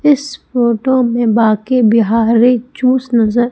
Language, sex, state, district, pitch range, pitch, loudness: Hindi, female, Madhya Pradesh, Umaria, 230-255 Hz, 240 Hz, -13 LUFS